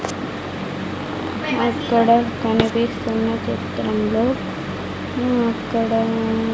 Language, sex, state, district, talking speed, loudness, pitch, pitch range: Telugu, female, Andhra Pradesh, Sri Satya Sai, 45 wpm, -21 LUFS, 230 Hz, 225-235 Hz